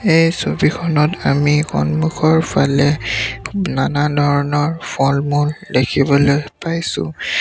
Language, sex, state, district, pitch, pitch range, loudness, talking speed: Assamese, male, Assam, Sonitpur, 145 Hz, 140-160 Hz, -16 LUFS, 90 wpm